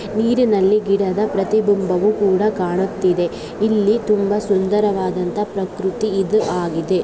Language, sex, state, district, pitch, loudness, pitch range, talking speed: Kannada, female, Karnataka, Dharwad, 200 Hz, -18 LUFS, 190-210 Hz, 85 wpm